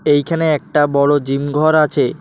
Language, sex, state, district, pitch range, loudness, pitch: Bengali, male, West Bengal, Alipurduar, 145-155 Hz, -15 LUFS, 145 Hz